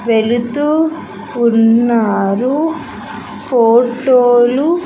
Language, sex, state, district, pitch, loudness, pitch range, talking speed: Telugu, female, Andhra Pradesh, Sri Satya Sai, 240 Hz, -13 LUFS, 225-285 Hz, 50 wpm